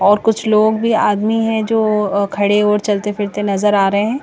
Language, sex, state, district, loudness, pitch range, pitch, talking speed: Hindi, female, Bihar, Katihar, -15 LUFS, 205-220 Hz, 210 Hz, 210 wpm